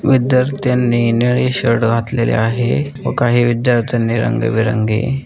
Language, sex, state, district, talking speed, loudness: Marathi, female, Maharashtra, Dhule, 115 wpm, -15 LUFS